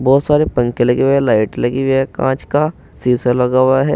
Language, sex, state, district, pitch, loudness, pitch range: Hindi, male, Uttar Pradesh, Saharanpur, 130 Hz, -15 LUFS, 125-135 Hz